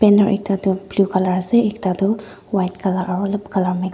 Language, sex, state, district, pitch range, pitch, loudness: Nagamese, female, Nagaland, Dimapur, 185-205 Hz, 195 Hz, -19 LUFS